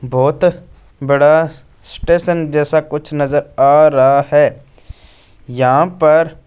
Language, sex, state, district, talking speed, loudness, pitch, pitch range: Hindi, male, Punjab, Fazilka, 100 wpm, -13 LUFS, 145 Hz, 135-160 Hz